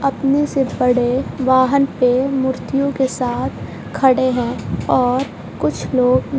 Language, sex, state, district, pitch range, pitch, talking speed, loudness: Hindi, female, Bihar, West Champaran, 245-270 Hz, 260 Hz, 120 wpm, -17 LUFS